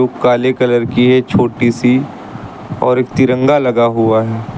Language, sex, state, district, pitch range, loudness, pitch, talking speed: Hindi, male, Uttar Pradesh, Lucknow, 120-130 Hz, -13 LUFS, 125 Hz, 155 wpm